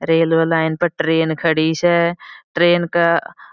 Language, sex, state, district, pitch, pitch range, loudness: Marwari, female, Rajasthan, Churu, 165 Hz, 160-170 Hz, -17 LUFS